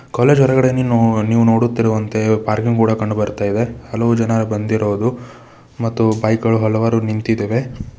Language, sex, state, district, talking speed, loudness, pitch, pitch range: Kannada, male, Karnataka, Bidar, 135 wpm, -16 LUFS, 115 Hz, 110-115 Hz